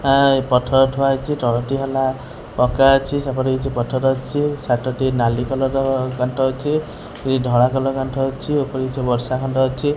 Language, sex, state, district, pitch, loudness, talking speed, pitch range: Odia, female, Odisha, Khordha, 135 Hz, -19 LUFS, 170 wpm, 130-135 Hz